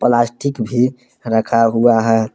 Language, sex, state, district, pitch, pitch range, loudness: Hindi, male, Jharkhand, Palamu, 120 Hz, 115-125 Hz, -16 LUFS